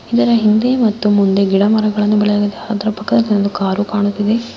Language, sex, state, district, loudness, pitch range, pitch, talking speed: Kannada, female, Karnataka, Mysore, -14 LUFS, 205-220 Hz, 210 Hz, 290 wpm